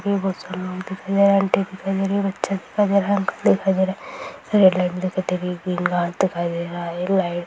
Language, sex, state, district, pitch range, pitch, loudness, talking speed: Hindi, female, Bihar, Sitamarhi, 180-195 Hz, 190 Hz, -21 LUFS, 170 wpm